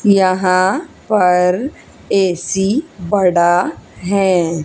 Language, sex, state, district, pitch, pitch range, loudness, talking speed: Hindi, female, Haryana, Charkhi Dadri, 185 Hz, 180-200 Hz, -15 LUFS, 65 wpm